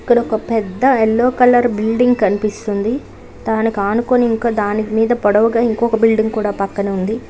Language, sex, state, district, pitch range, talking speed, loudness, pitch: Telugu, female, Andhra Pradesh, Guntur, 210-235 Hz, 130 wpm, -15 LUFS, 225 Hz